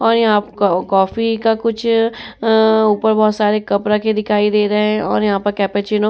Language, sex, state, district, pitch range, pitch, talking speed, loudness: Hindi, female, Uttar Pradesh, Muzaffarnagar, 210-225 Hz, 215 Hz, 195 wpm, -15 LUFS